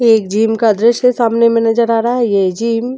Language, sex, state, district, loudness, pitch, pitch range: Hindi, female, Chhattisgarh, Korba, -13 LUFS, 230 Hz, 225-235 Hz